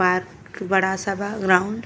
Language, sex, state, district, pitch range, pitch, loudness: Bhojpuri, female, Uttar Pradesh, Deoria, 185-200 Hz, 190 Hz, -22 LUFS